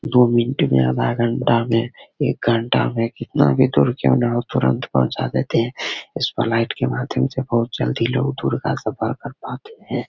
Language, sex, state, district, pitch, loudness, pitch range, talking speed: Hindi, male, Bihar, Begusarai, 115 Hz, -20 LUFS, 115-125 Hz, 200 wpm